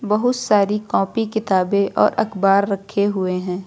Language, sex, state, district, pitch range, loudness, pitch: Hindi, female, Uttar Pradesh, Lucknow, 195-215 Hz, -19 LUFS, 200 Hz